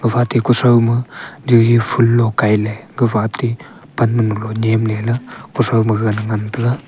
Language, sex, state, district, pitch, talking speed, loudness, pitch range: Wancho, male, Arunachal Pradesh, Longding, 115 Hz, 140 wpm, -16 LUFS, 110-120 Hz